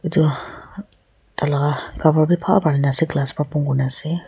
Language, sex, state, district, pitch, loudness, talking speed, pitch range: Nagamese, female, Nagaland, Kohima, 150 Hz, -18 LUFS, 180 wpm, 140-165 Hz